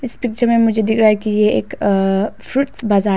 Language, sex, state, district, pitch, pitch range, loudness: Hindi, female, Arunachal Pradesh, Papum Pare, 220 Hz, 205-235 Hz, -16 LUFS